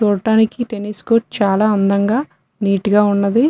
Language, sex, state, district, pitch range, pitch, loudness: Telugu, female, Telangana, Nalgonda, 200-220 Hz, 210 Hz, -16 LUFS